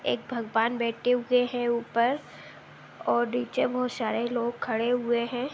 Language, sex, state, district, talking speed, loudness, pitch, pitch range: Hindi, female, Bihar, Saharsa, 150 wpm, -27 LUFS, 240 Hz, 235-245 Hz